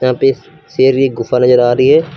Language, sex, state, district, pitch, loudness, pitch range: Hindi, male, Uttar Pradesh, Lucknow, 130 Hz, -12 LUFS, 125-135 Hz